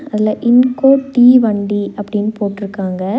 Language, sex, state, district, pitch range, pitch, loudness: Tamil, female, Tamil Nadu, Nilgiris, 205-250 Hz, 215 Hz, -13 LUFS